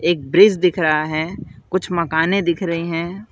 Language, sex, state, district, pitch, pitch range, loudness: Hindi, male, Gujarat, Valsad, 170 Hz, 160-185 Hz, -18 LUFS